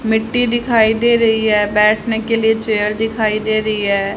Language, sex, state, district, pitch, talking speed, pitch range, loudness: Hindi, female, Haryana, Rohtak, 220 Hz, 185 wpm, 210-225 Hz, -15 LUFS